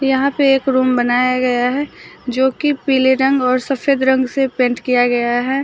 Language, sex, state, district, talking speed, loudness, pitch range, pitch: Hindi, female, Jharkhand, Deoghar, 200 wpm, -15 LUFS, 250-270 Hz, 260 Hz